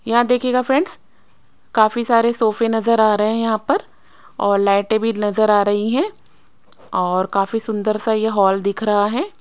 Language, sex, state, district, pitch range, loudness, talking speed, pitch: Hindi, female, Odisha, Sambalpur, 205-230 Hz, -18 LUFS, 180 wpm, 220 Hz